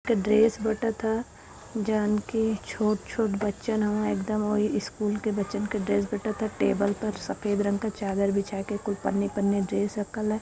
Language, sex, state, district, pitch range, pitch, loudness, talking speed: Bhojpuri, female, Uttar Pradesh, Varanasi, 205-220 Hz, 210 Hz, -27 LUFS, 175 wpm